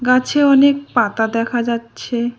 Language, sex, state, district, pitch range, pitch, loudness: Bengali, female, West Bengal, Cooch Behar, 235-275 Hz, 240 Hz, -16 LUFS